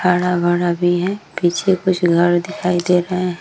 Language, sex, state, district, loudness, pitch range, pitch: Hindi, female, Bihar, Vaishali, -17 LUFS, 175-180 Hz, 180 Hz